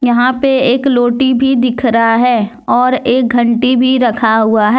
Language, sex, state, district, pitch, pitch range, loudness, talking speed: Hindi, female, Jharkhand, Deoghar, 245 Hz, 235-255 Hz, -11 LUFS, 190 wpm